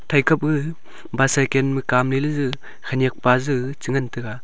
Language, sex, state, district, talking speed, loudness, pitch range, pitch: Wancho, male, Arunachal Pradesh, Longding, 175 wpm, -21 LUFS, 125-140 Hz, 135 Hz